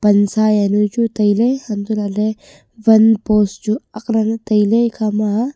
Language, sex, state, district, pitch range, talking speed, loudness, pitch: Wancho, female, Arunachal Pradesh, Longding, 210-225 Hz, 120 wpm, -16 LUFS, 215 Hz